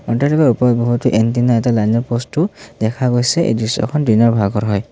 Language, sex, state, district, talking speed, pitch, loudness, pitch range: Assamese, male, Assam, Kamrup Metropolitan, 170 wpm, 120 Hz, -15 LUFS, 110-125 Hz